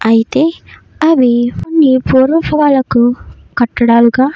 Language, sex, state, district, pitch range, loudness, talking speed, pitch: Telugu, female, Karnataka, Bellary, 240-295 Hz, -11 LUFS, 85 wpm, 260 Hz